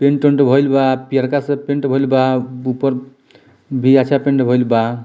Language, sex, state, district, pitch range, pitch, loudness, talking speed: Bhojpuri, male, Bihar, Muzaffarpur, 130-140 Hz, 135 Hz, -15 LUFS, 155 wpm